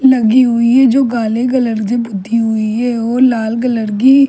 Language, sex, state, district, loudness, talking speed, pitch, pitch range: Hindi, female, Delhi, New Delhi, -13 LUFS, 195 wpm, 235 Hz, 225-255 Hz